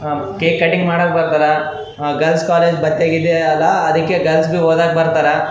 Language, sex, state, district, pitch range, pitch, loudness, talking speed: Kannada, male, Karnataka, Raichur, 155-165 Hz, 160 Hz, -14 LUFS, 120 wpm